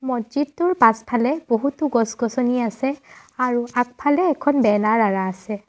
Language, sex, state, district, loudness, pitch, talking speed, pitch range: Assamese, female, Assam, Sonitpur, -20 LUFS, 245 Hz, 125 wpm, 225-285 Hz